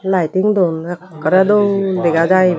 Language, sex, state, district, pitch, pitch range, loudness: Chakma, female, Tripura, Unakoti, 185 Hz, 175-190 Hz, -15 LUFS